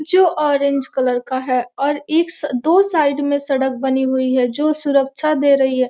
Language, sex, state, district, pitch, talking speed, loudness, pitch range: Hindi, female, Bihar, Gopalganj, 280 Hz, 175 wpm, -17 LUFS, 260-305 Hz